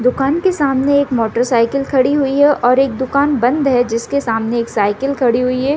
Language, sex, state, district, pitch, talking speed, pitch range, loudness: Hindi, female, Chhattisgarh, Raigarh, 260 Hz, 210 wpm, 240-280 Hz, -15 LUFS